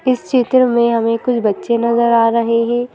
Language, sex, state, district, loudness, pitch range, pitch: Hindi, female, Madhya Pradesh, Bhopal, -14 LUFS, 230-245 Hz, 235 Hz